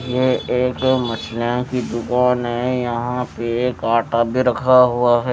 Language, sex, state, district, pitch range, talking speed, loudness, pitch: Hindi, male, Odisha, Nuapada, 120-125 Hz, 155 wpm, -18 LUFS, 125 Hz